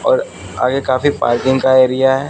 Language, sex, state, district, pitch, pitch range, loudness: Hindi, male, Haryana, Jhajjar, 130 Hz, 130-140 Hz, -14 LUFS